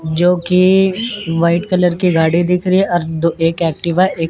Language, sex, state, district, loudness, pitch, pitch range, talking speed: Hindi, male, Chandigarh, Chandigarh, -14 LUFS, 175 Hz, 165-185 Hz, 180 wpm